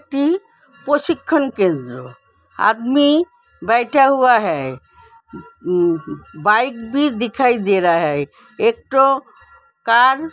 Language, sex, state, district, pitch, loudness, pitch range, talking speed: Hindi, female, Uttar Pradesh, Hamirpur, 260 Hz, -17 LUFS, 190-300 Hz, 105 wpm